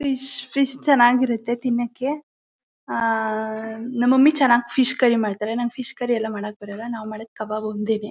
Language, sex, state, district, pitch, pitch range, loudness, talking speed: Kannada, female, Karnataka, Mysore, 240 Hz, 220-255 Hz, -21 LUFS, 155 wpm